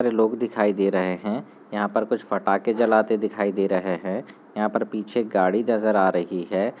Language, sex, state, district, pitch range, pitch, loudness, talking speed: Hindi, male, Bihar, Gaya, 95-110 Hz, 105 Hz, -23 LUFS, 205 wpm